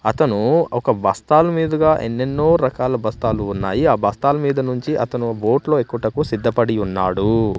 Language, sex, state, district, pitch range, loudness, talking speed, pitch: Telugu, male, Andhra Pradesh, Manyam, 110-145 Hz, -18 LUFS, 135 wpm, 120 Hz